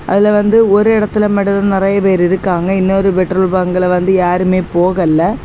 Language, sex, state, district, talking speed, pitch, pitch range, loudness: Tamil, female, Tamil Nadu, Kanyakumari, 165 wpm, 190 Hz, 180-200 Hz, -12 LUFS